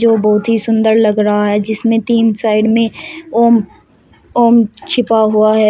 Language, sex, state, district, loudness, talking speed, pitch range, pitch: Hindi, female, Uttar Pradesh, Shamli, -12 LUFS, 170 wpm, 215-230 Hz, 225 Hz